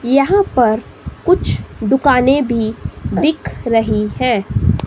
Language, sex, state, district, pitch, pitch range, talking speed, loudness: Hindi, female, Himachal Pradesh, Shimla, 250 Hz, 225-280 Hz, 100 wpm, -15 LUFS